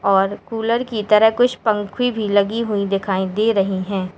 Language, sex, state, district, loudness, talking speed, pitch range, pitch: Hindi, female, Uttar Pradesh, Lalitpur, -18 LUFS, 185 wpm, 195-225 Hz, 205 Hz